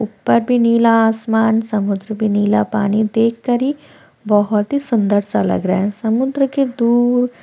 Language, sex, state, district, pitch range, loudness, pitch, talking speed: Hindi, female, Chhattisgarh, Korba, 210-245 Hz, -16 LUFS, 225 Hz, 160 wpm